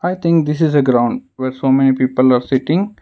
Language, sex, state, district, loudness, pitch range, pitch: English, male, Karnataka, Bangalore, -15 LUFS, 130-170 Hz, 135 Hz